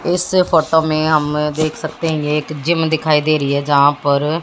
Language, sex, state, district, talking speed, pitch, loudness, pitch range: Hindi, female, Haryana, Jhajjar, 205 wpm, 155 Hz, -16 LUFS, 150-160 Hz